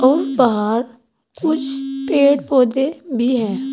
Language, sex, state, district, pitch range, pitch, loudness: Hindi, female, Uttar Pradesh, Saharanpur, 240-280 Hz, 265 Hz, -17 LUFS